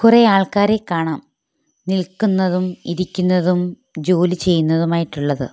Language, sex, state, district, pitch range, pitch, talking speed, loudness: Malayalam, female, Kerala, Kollam, 170-190 Hz, 180 Hz, 85 wpm, -18 LUFS